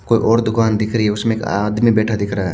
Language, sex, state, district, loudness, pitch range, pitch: Hindi, male, Haryana, Charkhi Dadri, -17 LUFS, 105-115 Hz, 110 Hz